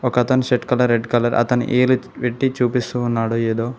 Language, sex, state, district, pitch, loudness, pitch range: Telugu, male, Telangana, Mahabubabad, 125 Hz, -19 LUFS, 120-125 Hz